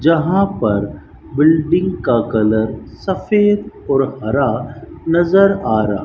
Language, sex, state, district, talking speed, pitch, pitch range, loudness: Hindi, male, Rajasthan, Bikaner, 120 wpm, 140 Hz, 110-180 Hz, -16 LUFS